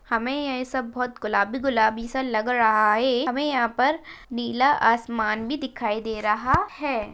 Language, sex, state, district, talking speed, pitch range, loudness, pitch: Hindi, female, Maharashtra, Dhule, 160 wpm, 225-265 Hz, -23 LUFS, 245 Hz